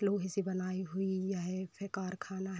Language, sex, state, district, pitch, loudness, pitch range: Hindi, female, Uttar Pradesh, Varanasi, 190 Hz, -37 LUFS, 185-195 Hz